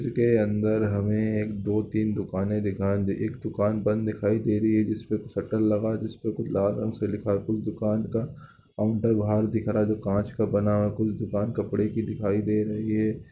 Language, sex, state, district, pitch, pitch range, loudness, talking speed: Hindi, male, Bihar, Lakhisarai, 105 Hz, 105-110 Hz, -26 LUFS, 210 wpm